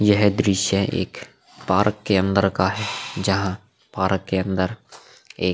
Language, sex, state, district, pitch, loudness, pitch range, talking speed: Hindi, male, Bihar, Vaishali, 95 Hz, -21 LUFS, 95-105 Hz, 150 wpm